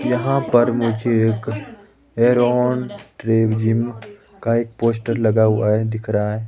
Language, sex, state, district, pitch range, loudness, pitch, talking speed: Hindi, male, Himachal Pradesh, Shimla, 110-120 Hz, -19 LUFS, 115 Hz, 150 wpm